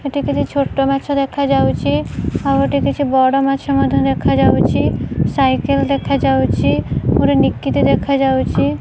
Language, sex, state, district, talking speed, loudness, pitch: Odia, female, Odisha, Malkangiri, 100 wpm, -15 LUFS, 260 Hz